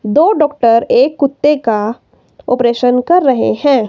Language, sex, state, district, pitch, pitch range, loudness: Hindi, female, Himachal Pradesh, Shimla, 250 Hz, 235-295 Hz, -12 LUFS